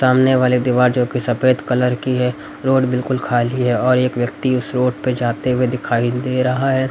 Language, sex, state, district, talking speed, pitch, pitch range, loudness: Hindi, male, Haryana, Rohtak, 210 wpm, 125 Hz, 125-130 Hz, -17 LUFS